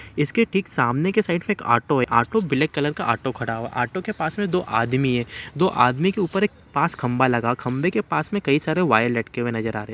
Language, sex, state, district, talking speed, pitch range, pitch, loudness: Hindi, male, Uttar Pradesh, Ghazipur, 245 wpm, 120-185 Hz, 140 Hz, -22 LUFS